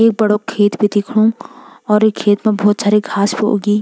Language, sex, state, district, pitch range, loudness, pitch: Garhwali, female, Uttarakhand, Tehri Garhwal, 205-220 Hz, -14 LUFS, 210 Hz